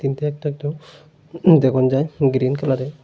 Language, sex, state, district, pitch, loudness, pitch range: Bengali, male, Tripura, Unakoti, 145 Hz, -19 LUFS, 135-150 Hz